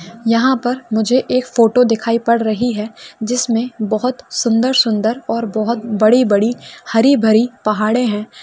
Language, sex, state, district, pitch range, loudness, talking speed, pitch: Hindi, female, Uttarakhand, Uttarkashi, 220-245 Hz, -15 LUFS, 155 wpm, 230 Hz